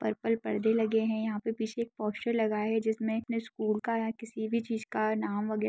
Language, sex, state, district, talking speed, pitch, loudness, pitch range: Hindi, female, Bihar, Jahanabad, 240 wpm, 220 Hz, -31 LUFS, 215-225 Hz